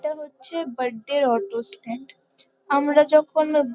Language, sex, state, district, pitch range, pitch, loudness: Bengali, female, West Bengal, Kolkata, 230-300 Hz, 265 Hz, -22 LUFS